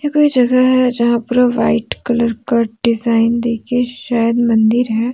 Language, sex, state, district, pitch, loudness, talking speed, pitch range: Hindi, female, Jharkhand, Deoghar, 235 Hz, -15 LUFS, 165 wpm, 230-250 Hz